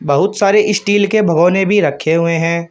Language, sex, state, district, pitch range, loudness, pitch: Hindi, male, Uttar Pradesh, Shamli, 165-205 Hz, -13 LUFS, 190 Hz